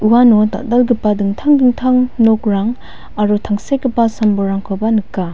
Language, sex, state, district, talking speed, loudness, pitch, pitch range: Garo, female, Meghalaya, West Garo Hills, 100 wpm, -14 LUFS, 220 Hz, 205-245 Hz